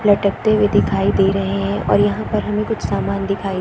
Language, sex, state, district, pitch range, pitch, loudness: Hindi, female, Chhattisgarh, Korba, 195-205 Hz, 195 Hz, -18 LUFS